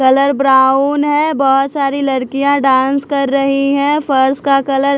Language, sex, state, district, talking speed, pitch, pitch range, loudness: Hindi, female, Chhattisgarh, Raipur, 170 wpm, 275 Hz, 270-280 Hz, -13 LUFS